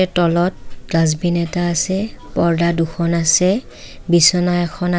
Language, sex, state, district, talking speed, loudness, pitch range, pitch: Assamese, female, Assam, Kamrup Metropolitan, 130 wpm, -17 LUFS, 170-180 Hz, 175 Hz